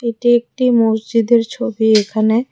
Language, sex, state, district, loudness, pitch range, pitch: Bengali, female, Tripura, West Tripura, -15 LUFS, 220-240 Hz, 230 Hz